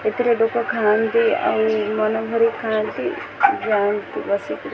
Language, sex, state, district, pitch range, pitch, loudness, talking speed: Odia, female, Odisha, Khordha, 215-230 Hz, 220 Hz, -20 LUFS, 115 wpm